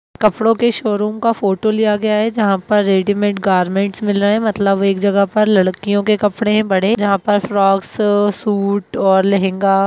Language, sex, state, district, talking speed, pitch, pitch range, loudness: Hindi, female, Bihar, Gaya, 190 wpm, 205 Hz, 195-215 Hz, -15 LUFS